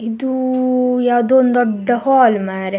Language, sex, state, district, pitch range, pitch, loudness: Kannada, female, Karnataka, Dakshina Kannada, 225-255 Hz, 245 Hz, -15 LUFS